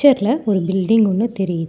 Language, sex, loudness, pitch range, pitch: Tamil, female, -17 LUFS, 190-230 Hz, 205 Hz